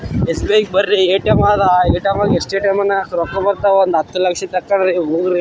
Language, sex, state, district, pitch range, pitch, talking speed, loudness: Kannada, male, Karnataka, Raichur, 180-200 Hz, 195 Hz, 145 wpm, -15 LUFS